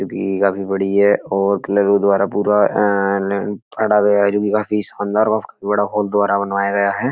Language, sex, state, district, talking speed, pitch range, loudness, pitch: Hindi, male, Uttar Pradesh, Etah, 210 wpm, 100-105 Hz, -17 LUFS, 100 Hz